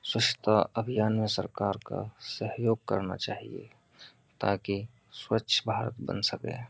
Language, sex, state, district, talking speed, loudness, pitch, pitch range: Hindi, male, Uttarakhand, Uttarkashi, 105 wpm, -30 LUFS, 110 Hz, 100-120 Hz